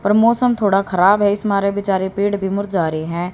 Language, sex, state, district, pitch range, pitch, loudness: Hindi, female, Haryana, Rohtak, 190-205 Hz, 200 Hz, -17 LUFS